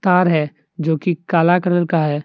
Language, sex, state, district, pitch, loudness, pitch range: Hindi, male, Jharkhand, Deoghar, 170 Hz, -17 LUFS, 155-180 Hz